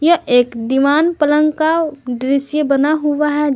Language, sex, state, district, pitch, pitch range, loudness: Hindi, male, Jharkhand, Garhwa, 295 Hz, 270-305 Hz, -15 LUFS